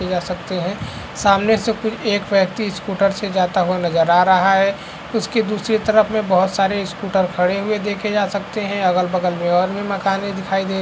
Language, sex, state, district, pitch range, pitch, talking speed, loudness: Hindi, male, Chhattisgarh, Bastar, 185-205 Hz, 195 Hz, 210 wpm, -18 LUFS